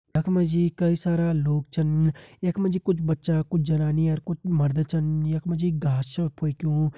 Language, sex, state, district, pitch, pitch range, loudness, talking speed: Hindi, male, Uttarakhand, Uttarkashi, 160 Hz, 155-170 Hz, -25 LUFS, 205 wpm